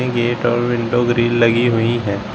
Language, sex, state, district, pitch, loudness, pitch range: Hindi, male, Uttar Pradesh, Shamli, 120 Hz, -16 LUFS, 115-120 Hz